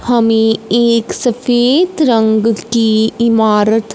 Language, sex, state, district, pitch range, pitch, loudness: Hindi, female, Punjab, Fazilka, 220-240 Hz, 230 Hz, -12 LUFS